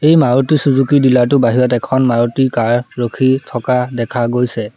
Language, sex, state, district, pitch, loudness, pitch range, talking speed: Assamese, male, Assam, Sonitpur, 125 Hz, -14 LUFS, 120-135 Hz, 150 wpm